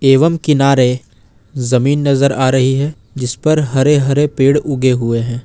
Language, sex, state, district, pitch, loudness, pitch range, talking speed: Hindi, male, Jharkhand, Ranchi, 135 Hz, -13 LUFS, 125-140 Hz, 165 wpm